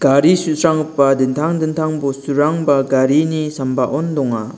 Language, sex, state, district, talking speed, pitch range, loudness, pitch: Garo, male, Meghalaya, West Garo Hills, 105 wpm, 135-155 Hz, -16 LUFS, 145 Hz